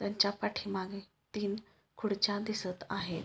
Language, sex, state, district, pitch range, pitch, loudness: Marathi, female, Maharashtra, Pune, 195-205 Hz, 200 Hz, -35 LUFS